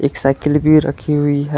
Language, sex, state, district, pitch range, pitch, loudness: Hindi, male, Karnataka, Bangalore, 140-150 Hz, 145 Hz, -15 LUFS